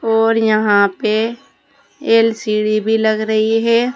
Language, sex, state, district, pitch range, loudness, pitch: Hindi, female, Uttar Pradesh, Saharanpur, 215-225 Hz, -15 LUFS, 220 Hz